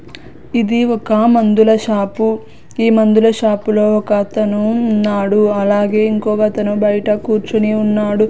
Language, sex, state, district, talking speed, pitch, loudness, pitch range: Telugu, female, Andhra Pradesh, Sri Satya Sai, 100 wpm, 215 Hz, -14 LUFS, 210-220 Hz